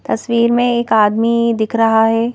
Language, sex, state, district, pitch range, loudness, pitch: Hindi, female, Madhya Pradesh, Bhopal, 225-235 Hz, -14 LUFS, 230 Hz